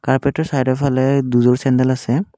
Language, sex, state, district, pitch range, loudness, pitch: Assamese, male, Assam, Kamrup Metropolitan, 130-140 Hz, -16 LUFS, 130 Hz